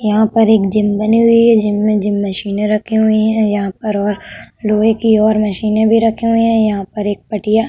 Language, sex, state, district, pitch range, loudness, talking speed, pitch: Hindi, female, Uttar Pradesh, Budaun, 210-220 Hz, -13 LUFS, 235 wpm, 215 Hz